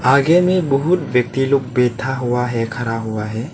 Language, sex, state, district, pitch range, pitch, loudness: Hindi, male, Arunachal Pradesh, Lower Dibang Valley, 115-140 Hz, 125 Hz, -17 LUFS